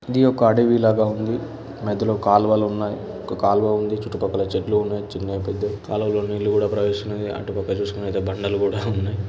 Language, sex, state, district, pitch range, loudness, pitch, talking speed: Telugu, male, Andhra Pradesh, Guntur, 100-110 Hz, -22 LUFS, 105 Hz, 175 wpm